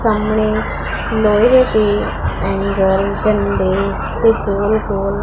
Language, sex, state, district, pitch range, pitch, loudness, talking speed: Punjabi, female, Punjab, Pathankot, 200-215 Hz, 210 Hz, -15 LUFS, 90 wpm